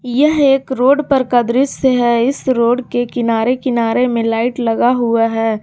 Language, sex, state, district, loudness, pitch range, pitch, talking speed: Hindi, female, Jharkhand, Garhwa, -14 LUFS, 235-260 Hz, 245 Hz, 180 wpm